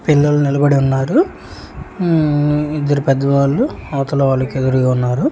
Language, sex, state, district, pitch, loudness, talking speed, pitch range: Telugu, male, Telangana, Hyderabad, 140 Hz, -15 LUFS, 115 wpm, 135-150 Hz